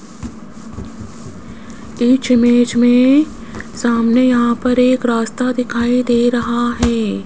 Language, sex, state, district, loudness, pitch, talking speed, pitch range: Hindi, female, Rajasthan, Jaipur, -14 LUFS, 240 Hz, 100 wpm, 235-250 Hz